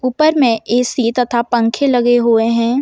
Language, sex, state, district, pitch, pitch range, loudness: Hindi, female, Jharkhand, Deoghar, 240 Hz, 230-255 Hz, -14 LUFS